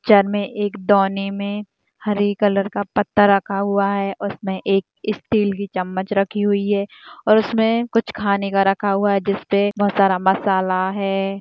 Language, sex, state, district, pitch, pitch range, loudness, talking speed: Hindi, female, Uttarakhand, Tehri Garhwal, 200 Hz, 195-205 Hz, -19 LUFS, 175 wpm